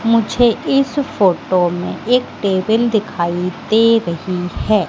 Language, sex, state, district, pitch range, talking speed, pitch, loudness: Hindi, female, Madhya Pradesh, Katni, 180-230 Hz, 125 wpm, 215 Hz, -16 LUFS